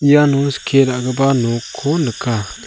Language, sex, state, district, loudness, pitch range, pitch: Garo, male, Meghalaya, South Garo Hills, -16 LUFS, 120-140 Hz, 135 Hz